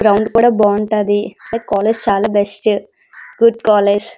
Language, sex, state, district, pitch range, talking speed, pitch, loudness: Telugu, female, Andhra Pradesh, Srikakulam, 205-225 Hz, 130 wpm, 210 Hz, -14 LUFS